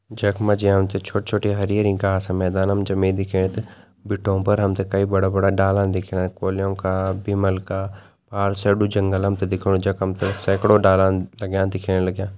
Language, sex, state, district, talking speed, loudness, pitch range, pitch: Garhwali, male, Uttarakhand, Tehri Garhwal, 150 wpm, -21 LUFS, 95-100 Hz, 95 Hz